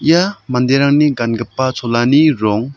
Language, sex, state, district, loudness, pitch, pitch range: Garo, male, Meghalaya, South Garo Hills, -14 LUFS, 130 Hz, 120-150 Hz